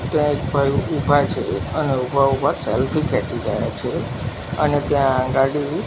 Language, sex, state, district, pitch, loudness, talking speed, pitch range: Gujarati, male, Gujarat, Gandhinagar, 135 Hz, -20 LUFS, 155 wpm, 125-145 Hz